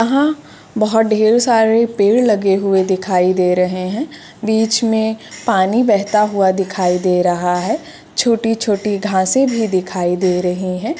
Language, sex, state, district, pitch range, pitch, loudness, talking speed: Hindi, female, Bihar, Purnia, 185-225 Hz, 205 Hz, -15 LUFS, 145 wpm